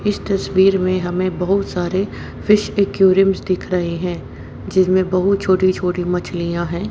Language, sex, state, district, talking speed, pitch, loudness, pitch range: Hindi, male, Haryana, Jhajjar, 145 wpm, 185 Hz, -18 LUFS, 180-195 Hz